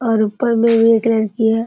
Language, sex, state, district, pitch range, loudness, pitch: Hindi, female, Bihar, Sitamarhi, 220-230 Hz, -15 LUFS, 225 Hz